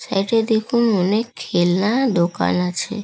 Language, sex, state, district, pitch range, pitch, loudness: Bengali, female, West Bengal, North 24 Parganas, 175-225 Hz, 200 Hz, -19 LUFS